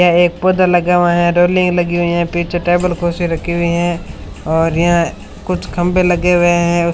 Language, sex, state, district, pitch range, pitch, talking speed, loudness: Hindi, female, Rajasthan, Bikaner, 170-175 Hz, 175 Hz, 200 wpm, -14 LUFS